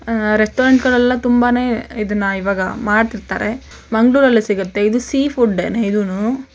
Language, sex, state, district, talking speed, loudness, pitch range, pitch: Kannada, female, Karnataka, Mysore, 110 wpm, -16 LUFS, 210-245 Hz, 225 Hz